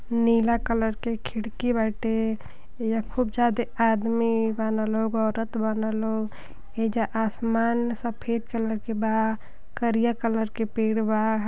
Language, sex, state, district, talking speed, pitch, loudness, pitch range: Bhojpuri, female, Uttar Pradesh, Deoria, 135 wpm, 225 Hz, -26 LUFS, 220-230 Hz